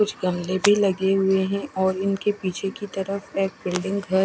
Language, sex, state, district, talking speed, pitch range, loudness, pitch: Hindi, female, Odisha, Khordha, 195 wpm, 190-200 Hz, -23 LUFS, 195 Hz